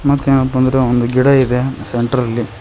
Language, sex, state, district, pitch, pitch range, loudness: Kannada, male, Karnataka, Koppal, 130 Hz, 120-135 Hz, -14 LUFS